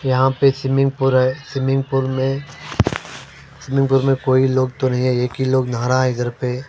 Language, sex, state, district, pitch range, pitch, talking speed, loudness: Hindi, male, Maharashtra, Mumbai Suburban, 130-135 Hz, 130 Hz, 205 wpm, -18 LUFS